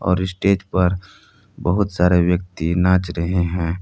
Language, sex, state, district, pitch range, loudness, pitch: Hindi, male, Jharkhand, Palamu, 90-95 Hz, -19 LUFS, 90 Hz